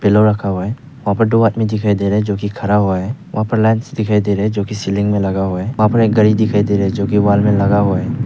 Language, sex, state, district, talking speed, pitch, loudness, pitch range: Hindi, male, Arunachal Pradesh, Papum Pare, 335 wpm, 105 Hz, -15 LUFS, 100-110 Hz